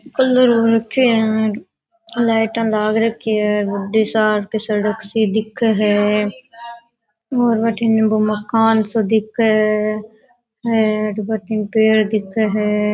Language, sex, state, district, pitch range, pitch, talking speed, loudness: Rajasthani, female, Rajasthan, Nagaur, 215-230 Hz, 220 Hz, 105 wpm, -17 LUFS